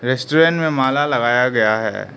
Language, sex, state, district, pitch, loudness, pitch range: Hindi, male, Arunachal Pradesh, Lower Dibang Valley, 130 Hz, -16 LUFS, 120-150 Hz